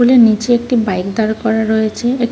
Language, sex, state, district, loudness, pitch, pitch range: Bengali, female, West Bengal, North 24 Parganas, -14 LUFS, 225 Hz, 220-240 Hz